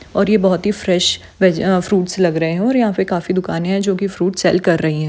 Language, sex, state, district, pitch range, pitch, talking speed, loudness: Hindi, female, Chhattisgarh, Rajnandgaon, 180-195 Hz, 185 Hz, 285 wpm, -16 LUFS